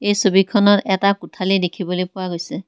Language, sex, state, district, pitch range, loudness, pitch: Assamese, female, Assam, Kamrup Metropolitan, 180-200 Hz, -18 LUFS, 190 Hz